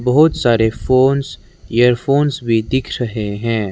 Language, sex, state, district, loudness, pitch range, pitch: Hindi, male, Arunachal Pradesh, Lower Dibang Valley, -16 LUFS, 110-130 Hz, 120 Hz